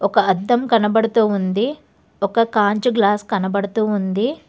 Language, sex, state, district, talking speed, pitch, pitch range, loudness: Telugu, female, Telangana, Hyderabad, 120 wpm, 210 Hz, 200-230 Hz, -18 LUFS